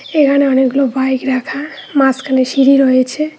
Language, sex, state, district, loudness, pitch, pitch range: Bengali, female, West Bengal, Cooch Behar, -13 LUFS, 270 Hz, 260-280 Hz